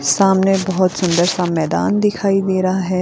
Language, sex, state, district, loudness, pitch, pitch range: Hindi, female, Himachal Pradesh, Shimla, -16 LUFS, 185 Hz, 180-195 Hz